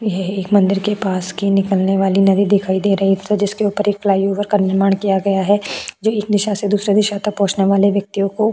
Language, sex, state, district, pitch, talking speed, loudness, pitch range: Hindi, female, Uttarakhand, Tehri Garhwal, 200 Hz, 230 wpm, -16 LUFS, 195-205 Hz